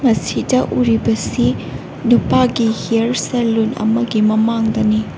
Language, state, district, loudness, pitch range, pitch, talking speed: Manipuri, Manipur, Imphal West, -16 LUFS, 150-235 Hz, 220 Hz, 105 wpm